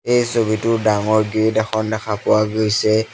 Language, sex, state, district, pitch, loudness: Assamese, male, Assam, Sonitpur, 110 Hz, -18 LUFS